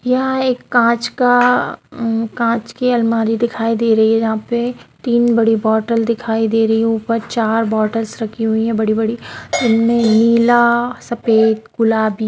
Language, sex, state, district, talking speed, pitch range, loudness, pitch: Hindi, female, Bihar, Darbhanga, 160 wpm, 225-235 Hz, -15 LUFS, 230 Hz